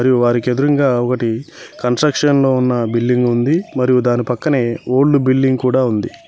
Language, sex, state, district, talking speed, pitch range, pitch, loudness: Telugu, male, Telangana, Mahabubabad, 155 wpm, 120-135 Hz, 125 Hz, -15 LUFS